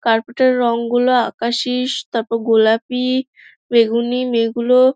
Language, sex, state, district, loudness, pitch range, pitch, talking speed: Bengali, female, West Bengal, Dakshin Dinajpur, -17 LUFS, 230-255 Hz, 240 Hz, 110 wpm